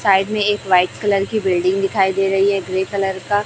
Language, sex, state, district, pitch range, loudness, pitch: Hindi, female, Chhattisgarh, Raipur, 190-205 Hz, -17 LUFS, 195 Hz